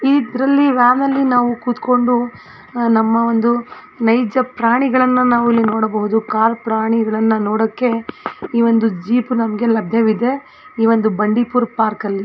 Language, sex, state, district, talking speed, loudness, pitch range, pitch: Kannada, female, Karnataka, Belgaum, 115 wpm, -16 LUFS, 220-250 Hz, 235 Hz